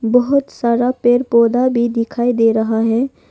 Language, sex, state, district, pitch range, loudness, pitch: Hindi, female, Arunachal Pradesh, Longding, 230-250 Hz, -15 LUFS, 240 Hz